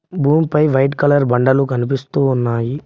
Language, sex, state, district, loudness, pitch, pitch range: Telugu, male, Telangana, Mahabubabad, -15 LUFS, 135 Hz, 125-145 Hz